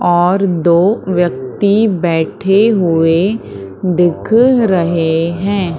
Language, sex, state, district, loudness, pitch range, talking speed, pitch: Hindi, female, Madhya Pradesh, Umaria, -13 LUFS, 170-200 Hz, 85 wpm, 180 Hz